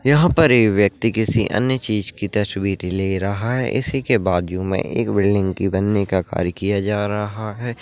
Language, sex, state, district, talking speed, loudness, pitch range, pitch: Hindi, male, Rajasthan, Churu, 205 wpm, -19 LUFS, 95-115 Hz, 105 Hz